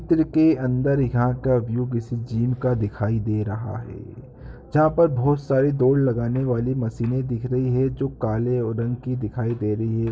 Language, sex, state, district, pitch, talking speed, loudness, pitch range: Hindi, male, Uttar Pradesh, Ghazipur, 125 Hz, 195 wpm, -22 LUFS, 115-130 Hz